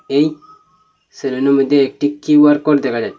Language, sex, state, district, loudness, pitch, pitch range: Bengali, male, Assam, Hailakandi, -14 LUFS, 145 Hz, 140-160 Hz